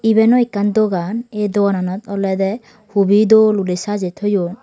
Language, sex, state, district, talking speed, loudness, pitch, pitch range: Chakma, female, Tripura, Dhalai, 155 wpm, -16 LUFS, 205 Hz, 195-215 Hz